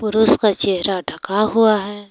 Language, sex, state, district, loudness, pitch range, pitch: Hindi, female, Jharkhand, Palamu, -17 LUFS, 195-215 Hz, 210 Hz